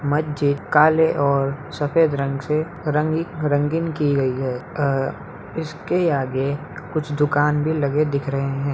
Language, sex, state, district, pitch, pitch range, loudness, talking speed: Hindi, female, Bihar, Darbhanga, 145 Hz, 140-155 Hz, -21 LUFS, 130 wpm